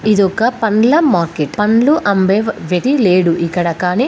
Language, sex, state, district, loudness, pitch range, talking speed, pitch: Telugu, female, Telangana, Karimnagar, -13 LUFS, 180-235 Hz, 175 wpm, 205 Hz